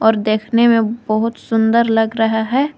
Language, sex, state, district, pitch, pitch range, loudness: Hindi, female, Jharkhand, Garhwa, 225 Hz, 220-230 Hz, -16 LUFS